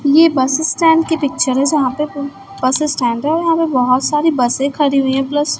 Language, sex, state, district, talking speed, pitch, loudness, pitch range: Hindi, female, Chhattisgarh, Raipur, 235 wpm, 285 Hz, -15 LUFS, 265-310 Hz